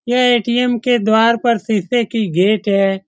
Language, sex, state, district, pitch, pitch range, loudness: Hindi, male, Bihar, Saran, 230 Hz, 205-245 Hz, -15 LUFS